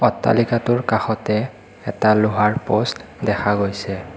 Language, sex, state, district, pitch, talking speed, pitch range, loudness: Assamese, male, Assam, Kamrup Metropolitan, 110 Hz, 100 wpm, 105-115 Hz, -19 LUFS